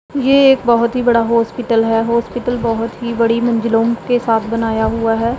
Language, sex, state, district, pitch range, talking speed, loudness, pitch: Hindi, female, Punjab, Pathankot, 230-245 Hz, 190 wpm, -15 LUFS, 230 Hz